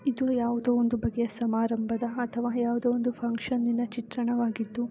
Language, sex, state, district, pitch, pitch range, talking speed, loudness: Kannada, female, Karnataka, Dharwad, 240 Hz, 235-245 Hz, 110 wpm, -28 LUFS